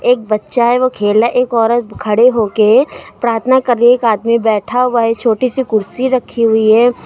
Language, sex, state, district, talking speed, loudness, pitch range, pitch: Hindi, female, Uttar Pradesh, Lucknow, 240 wpm, -13 LUFS, 220-250 Hz, 235 Hz